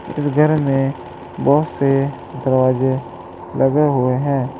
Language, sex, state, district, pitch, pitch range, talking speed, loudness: Hindi, male, Uttar Pradesh, Saharanpur, 135 Hz, 130-145 Hz, 115 wpm, -17 LUFS